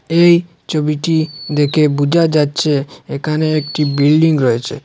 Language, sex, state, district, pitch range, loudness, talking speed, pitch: Bengali, male, Assam, Hailakandi, 145-160 Hz, -14 LUFS, 110 wpm, 150 Hz